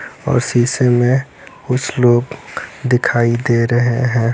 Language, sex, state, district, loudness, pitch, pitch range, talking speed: Hindi, male, Bihar, Lakhisarai, -15 LUFS, 120 Hz, 120-125 Hz, 140 wpm